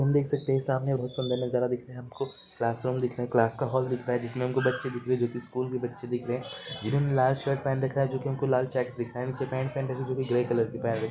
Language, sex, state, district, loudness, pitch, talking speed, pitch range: Hindi, male, Jharkhand, Jamtara, -29 LUFS, 125 Hz, 340 wpm, 120-135 Hz